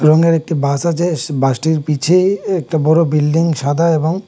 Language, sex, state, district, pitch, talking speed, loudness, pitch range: Bengali, male, Tripura, West Tripura, 160 Hz, 195 wpm, -15 LUFS, 150-170 Hz